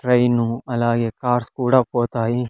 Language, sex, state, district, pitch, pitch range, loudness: Telugu, male, Andhra Pradesh, Sri Satya Sai, 120 Hz, 115-125 Hz, -20 LUFS